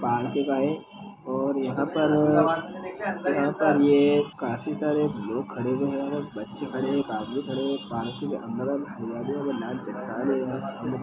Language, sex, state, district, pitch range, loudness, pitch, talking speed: Hindi, male, Bihar, Lakhisarai, 135-150 Hz, -26 LUFS, 140 Hz, 175 wpm